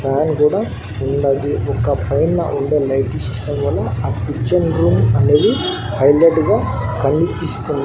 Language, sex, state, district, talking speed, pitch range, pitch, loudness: Telugu, male, Andhra Pradesh, Annamaya, 120 wpm, 110-145 Hz, 135 Hz, -16 LUFS